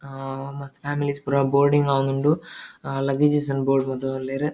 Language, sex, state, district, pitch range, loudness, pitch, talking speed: Tulu, male, Karnataka, Dakshina Kannada, 135-145 Hz, -23 LUFS, 140 Hz, 145 wpm